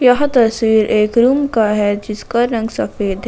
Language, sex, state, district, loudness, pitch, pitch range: Hindi, female, Jharkhand, Ranchi, -15 LUFS, 225 Hz, 210-240 Hz